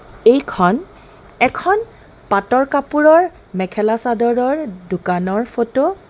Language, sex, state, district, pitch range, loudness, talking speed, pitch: Assamese, female, Assam, Kamrup Metropolitan, 200-300 Hz, -16 LUFS, 90 wpm, 240 Hz